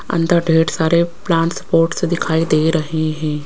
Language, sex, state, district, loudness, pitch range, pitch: Hindi, female, Rajasthan, Jaipur, -16 LUFS, 160-170 Hz, 165 Hz